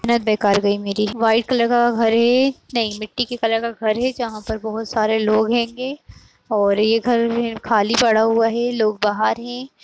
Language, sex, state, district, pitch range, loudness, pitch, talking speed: Kumaoni, female, Uttarakhand, Uttarkashi, 215-240 Hz, -19 LUFS, 225 Hz, 190 wpm